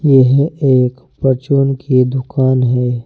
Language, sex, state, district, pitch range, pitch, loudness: Hindi, male, Uttar Pradesh, Saharanpur, 125-135 Hz, 130 Hz, -14 LUFS